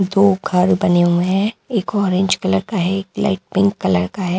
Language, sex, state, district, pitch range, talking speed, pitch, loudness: Hindi, female, Bihar, West Champaran, 180-200 Hz, 220 wpm, 190 Hz, -17 LUFS